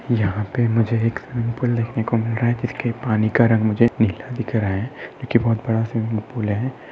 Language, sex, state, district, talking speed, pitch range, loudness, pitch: Hindi, male, Maharashtra, Chandrapur, 225 wpm, 110-120 Hz, -21 LUFS, 115 Hz